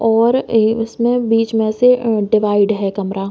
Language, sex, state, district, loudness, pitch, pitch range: Hindi, female, Chhattisgarh, Bastar, -15 LUFS, 225 Hz, 210-230 Hz